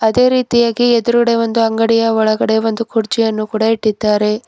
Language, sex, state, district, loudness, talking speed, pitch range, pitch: Kannada, female, Karnataka, Bidar, -14 LUFS, 135 wpm, 220-235 Hz, 225 Hz